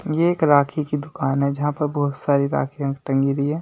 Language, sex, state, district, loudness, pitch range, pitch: Hindi, male, Delhi, New Delhi, -21 LUFS, 140-150 Hz, 145 Hz